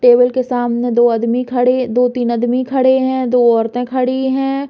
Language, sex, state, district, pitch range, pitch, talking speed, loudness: Bundeli, female, Uttar Pradesh, Hamirpur, 240-260 Hz, 250 Hz, 180 wpm, -15 LUFS